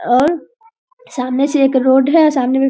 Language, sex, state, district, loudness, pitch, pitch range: Hindi, female, Bihar, Darbhanga, -14 LUFS, 275 Hz, 260-340 Hz